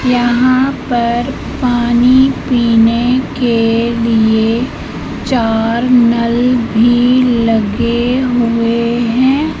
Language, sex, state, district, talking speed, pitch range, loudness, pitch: Hindi, female, Madhya Pradesh, Katni, 75 wpm, 230-250 Hz, -12 LUFS, 240 Hz